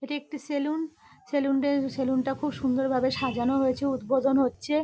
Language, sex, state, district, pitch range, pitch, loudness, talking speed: Bengali, female, West Bengal, North 24 Parganas, 265-285 Hz, 270 Hz, -27 LUFS, 175 wpm